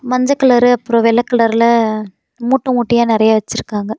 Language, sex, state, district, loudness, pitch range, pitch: Tamil, female, Tamil Nadu, Nilgiris, -13 LUFS, 220-245 Hz, 235 Hz